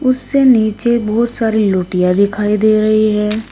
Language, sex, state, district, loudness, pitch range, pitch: Hindi, female, Uttar Pradesh, Shamli, -13 LUFS, 210-235 Hz, 215 Hz